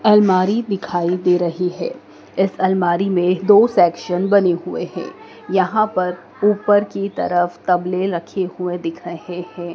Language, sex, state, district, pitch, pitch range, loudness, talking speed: Hindi, female, Madhya Pradesh, Dhar, 180 Hz, 175-195 Hz, -18 LUFS, 150 wpm